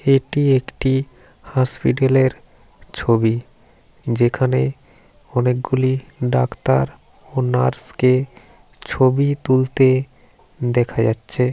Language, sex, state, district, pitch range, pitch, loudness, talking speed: Bengali, male, West Bengal, Paschim Medinipur, 120-130 Hz, 130 Hz, -18 LUFS, 75 wpm